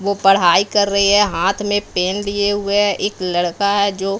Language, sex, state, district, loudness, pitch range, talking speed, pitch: Hindi, female, Bihar, Patna, -16 LUFS, 195-205 Hz, 215 wpm, 200 Hz